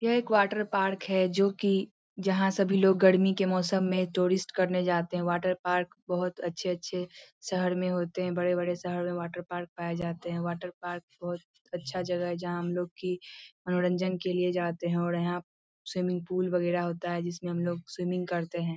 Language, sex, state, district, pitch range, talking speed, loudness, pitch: Hindi, female, Bihar, Lakhisarai, 175-185 Hz, 185 wpm, -30 LUFS, 180 Hz